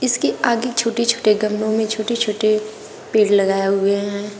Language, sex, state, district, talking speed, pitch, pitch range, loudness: Hindi, female, Uttar Pradesh, Shamli, 165 wpm, 215 Hz, 205-235 Hz, -18 LUFS